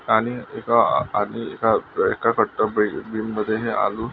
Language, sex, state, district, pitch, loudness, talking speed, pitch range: Marathi, male, Maharashtra, Nagpur, 110 Hz, -22 LUFS, 100 wpm, 110-115 Hz